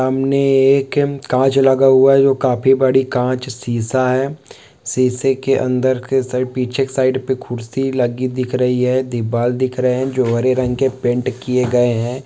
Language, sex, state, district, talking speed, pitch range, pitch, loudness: Hindi, male, West Bengal, North 24 Parganas, 180 wpm, 125-135 Hz, 130 Hz, -16 LUFS